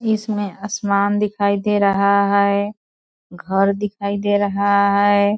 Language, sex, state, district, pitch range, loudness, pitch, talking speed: Hindi, female, Bihar, Purnia, 200-205 Hz, -18 LUFS, 200 Hz, 125 wpm